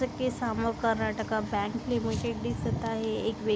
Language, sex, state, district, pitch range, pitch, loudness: Marathi, female, Maharashtra, Aurangabad, 220-235 Hz, 225 Hz, -30 LUFS